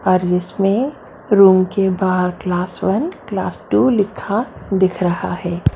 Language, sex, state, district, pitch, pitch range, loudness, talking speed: Hindi, female, Maharashtra, Mumbai Suburban, 190 Hz, 180-205 Hz, -17 LUFS, 135 wpm